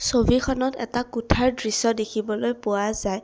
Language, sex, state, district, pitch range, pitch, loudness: Assamese, female, Assam, Kamrup Metropolitan, 215-245 Hz, 230 Hz, -24 LUFS